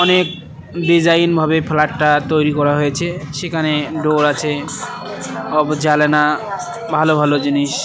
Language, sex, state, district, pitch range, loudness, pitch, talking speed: Bengali, male, West Bengal, Cooch Behar, 150-165 Hz, -16 LUFS, 155 Hz, 105 wpm